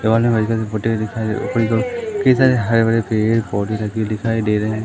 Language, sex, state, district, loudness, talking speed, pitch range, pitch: Hindi, male, Madhya Pradesh, Umaria, -18 LUFS, 200 wpm, 110-115 Hz, 115 Hz